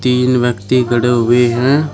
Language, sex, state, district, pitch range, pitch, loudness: Hindi, male, Uttar Pradesh, Shamli, 120-125 Hz, 125 Hz, -13 LUFS